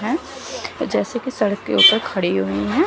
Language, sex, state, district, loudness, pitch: Hindi, female, Chandigarh, Chandigarh, -18 LUFS, 210 Hz